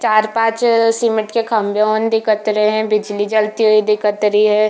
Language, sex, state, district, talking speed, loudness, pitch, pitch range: Hindi, female, Chhattisgarh, Bilaspur, 180 wpm, -15 LUFS, 215 Hz, 210-225 Hz